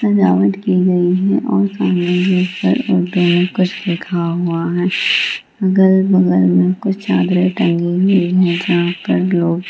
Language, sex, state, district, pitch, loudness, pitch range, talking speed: Hindi, female, Bihar, Gaya, 180 Hz, -15 LUFS, 170-190 Hz, 150 wpm